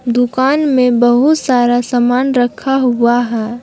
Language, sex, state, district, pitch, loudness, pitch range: Hindi, female, Jharkhand, Palamu, 245 Hz, -13 LUFS, 240-260 Hz